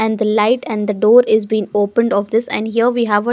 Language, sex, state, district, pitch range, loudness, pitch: English, female, Haryana, Jhajjar, 210-235 Hz, -15 LUFS, 220 Hz